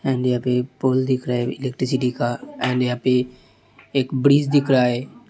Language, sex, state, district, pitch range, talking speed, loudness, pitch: Hindi, male, Uttar Pradesh, Hamirpur, 125-130 Hz, 190 wpm, -21 LUFS, 130 Hz